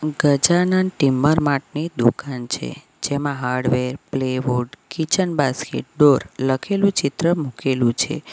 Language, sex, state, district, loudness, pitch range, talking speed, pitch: Gujarati, female, Gujarat, Valsad, -20 LUFS, 125-155 Hz, 115 wpm, 140 Hz